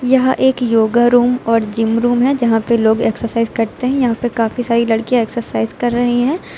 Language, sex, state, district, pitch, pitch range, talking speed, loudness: Hindi, female, Uttar Pradesh, Lucknow, 240 Hz, 225-245 Hz, 210 wpm, -15 LUFS